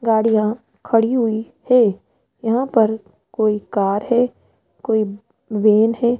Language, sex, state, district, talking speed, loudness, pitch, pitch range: Hindi, female, Rajasthan, Jaipur, 105 wpm, -18 LUFS, 225 Hz, 215-235 Hz